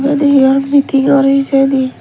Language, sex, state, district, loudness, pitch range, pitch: Chakma, female, Tripura, West Tripura, -11 LUFS, 270-280 Hz, 275 Hz